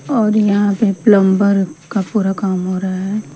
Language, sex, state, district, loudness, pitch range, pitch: Hindi, female, Punjab, Pathankot, -15 LUFS, 190-210 Hz, 200 Hz